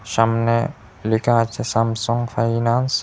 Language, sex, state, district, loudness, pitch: Bengali, male, Assam, Hailakandi, -20 LUFS, 115 Hz